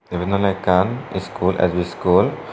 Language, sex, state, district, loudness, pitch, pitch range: Chakma, male, Tripura, Dhalai, -19 LUFS, 95 Hz, 90-100 Hz